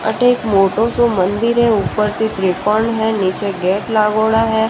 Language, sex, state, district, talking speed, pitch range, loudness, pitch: Marwari, female, Rajasthan, Churu, 180 wpm, 200-225 Hz, -15 LUFS, 220 Hz